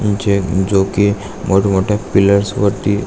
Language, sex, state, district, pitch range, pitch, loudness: Marathi, male, Maharashtra, Aurangabad, 95-100 Hz, 100 Hz, -15 LUFS